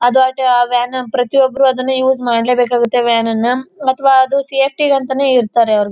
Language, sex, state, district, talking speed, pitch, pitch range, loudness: Kannada, female, Karnataka, Chamarajanagar, 180 wpm, 255 Hz, 245-265 Hz, -13 LUFS